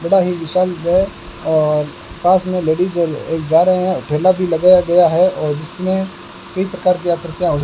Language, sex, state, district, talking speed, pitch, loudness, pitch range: Hindi, male, Rajasthan, Bikaner, 190 wpm, 180 Hz, -16 LUFS, 165-185 Hz